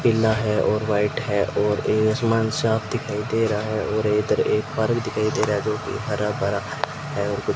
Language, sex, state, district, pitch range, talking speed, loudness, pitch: Hindi, male, Rajasthan, Bikaner, 105-110 Hz, 200 wpm, -23 LUFS, 110 Hz